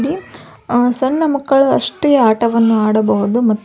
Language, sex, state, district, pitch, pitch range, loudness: Kannada, female, Karnataka, Belgaum, 240 Hz, 220-275 Hz, -14 LUFS